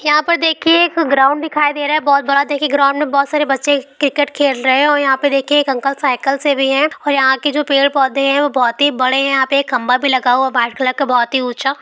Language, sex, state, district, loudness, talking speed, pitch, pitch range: Hindi, female, Bihar, Lakhisarai, -14 LUFS, 280 wpm, 280 Hz, 265-290 Hz